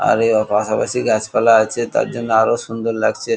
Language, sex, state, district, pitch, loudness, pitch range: Bengali, male, West Bengal, Kolkata, 115 Hz, -17 LUFS, 110-120 Hz